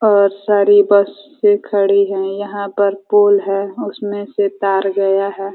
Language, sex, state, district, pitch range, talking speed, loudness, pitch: Hindi, female, Uttar Pradesh, Ghazipur, 195-205 Hz, 150 wpm, -15 LUFS, 200 Hz